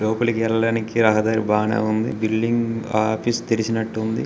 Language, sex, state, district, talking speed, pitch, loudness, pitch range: Telugu, male, Andhra Pradesh, Krishna, 140 wpm, 110 Hz, -21 LUFS, 110-115 Hz